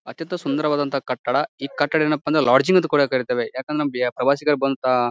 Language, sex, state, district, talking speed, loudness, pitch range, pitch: Kannada, male, Karnataka, Bijapur, 165 wpm, -21 LUFS, 130-150 Hz, 140 Hz